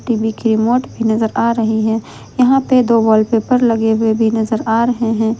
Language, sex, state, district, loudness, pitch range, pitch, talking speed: Hindi, female, Jharkhand, Ranchi, -14 LUFS, 220-235 Hz, 225 Hz, 200 wpm